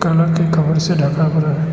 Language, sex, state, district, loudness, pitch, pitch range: Hindi, male, Arunachal Pradesh, Lower Dibang Valley, -16 LUFS, 160 Hz, 155-165 Hz